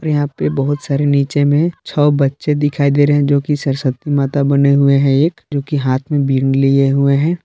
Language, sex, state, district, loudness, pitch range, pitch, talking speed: Hindi, male, Jharkhand, Palamu, -14 LUFS, 140-145 Hz, 140 Hz, 225 wpm